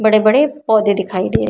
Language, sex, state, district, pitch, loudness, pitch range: Hindi, female, Maharashtra, Chandrapur, 215 Hz, -14 LUFS, 205-220 Hz